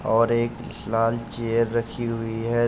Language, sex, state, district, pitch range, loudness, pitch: Hindi, male, Uttar Pradesh, Jalaun, 115-120 Hz, -24 LUFS, 115 Hz